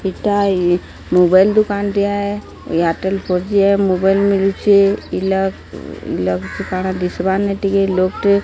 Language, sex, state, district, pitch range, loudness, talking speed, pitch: Odia, female, Odisha, Sambalpur, 185-200 Hz, -16 LUFS, 135 wpm, 195 Hz